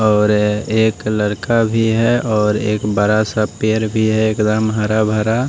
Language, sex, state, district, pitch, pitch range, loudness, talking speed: Hindi, male, Odisha, Nuapada, 110 Hz, 105-110 Hz, -16 LUFS, 165 wpm